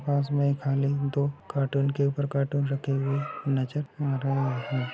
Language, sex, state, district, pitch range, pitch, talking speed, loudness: Hindi, male, Bihar, Gaya, 135-140 Hz, 140 Hz, 180 wpm, -28 LUFS